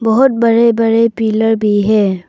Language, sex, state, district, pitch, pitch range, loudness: Hindi, female, Arunachal Pradesh, Papum Pare, 225 Hz, 215-230 Hz, -12 LUFS